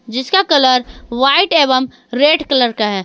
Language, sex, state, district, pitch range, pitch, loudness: Hindi, female, Jharkhand, Garhwa, 245-295 Hz, 260 Hz, -13 LUFS